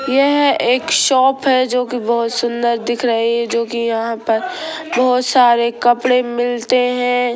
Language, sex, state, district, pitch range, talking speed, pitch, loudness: Hindi, female, Bihar, Saran, 235-255 Hz, 145 wpm, 245 Hz, -15 LUFS